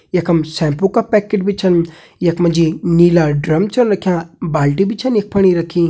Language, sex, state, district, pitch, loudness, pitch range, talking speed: Hindi, male, Uttarakhand, Tehri Garhwal, 175 Hz, -15 LUFS, 165-200 Hz, 195 wpm